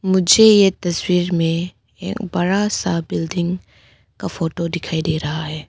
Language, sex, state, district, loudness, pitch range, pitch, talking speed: Hindi, female, Arunachal Pradesh, Papum Pare, -18 LUFS, 160-185 Hz, 170 Hz, 150 wpm